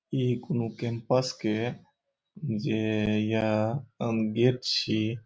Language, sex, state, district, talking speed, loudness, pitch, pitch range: Maithili, male, Bihar, Saharsa, 115 wpm, -28 LUFS, 115 Hz, 110-125 Hz